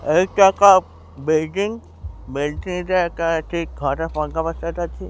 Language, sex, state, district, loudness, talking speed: Odia, male, Odisha, Khordha, -19 LUFS, 105 wpm